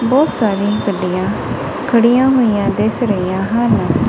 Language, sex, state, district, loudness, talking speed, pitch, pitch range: Punjabi, female, Punjab, Kapurthala, -15 LUFS, 115 wpm, 215 Hz, 200-240 Hz